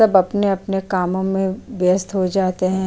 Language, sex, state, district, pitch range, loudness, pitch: Hindi, female, Uttar Pradesh, Jyotiba Phule Nagar, 185-195 Hz, -19 LUFS, 190 Hz